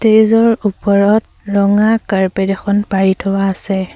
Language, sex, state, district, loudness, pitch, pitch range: Assamese, female, Assam, Sonitpur, -13 LUFS, 200 Hz, 195-215 Hz